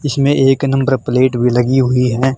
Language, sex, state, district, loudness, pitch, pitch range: Hindi, male, Haryana, Charkhi Dadri, -13 LUFS, 130 Hz, 125-135 Hz